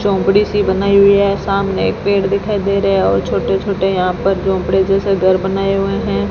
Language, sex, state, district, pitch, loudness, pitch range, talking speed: Hindi, female, Rajasthan, Bikaner, 195 Hz, -14 LUFS, 190-200 Hz, 220 wpm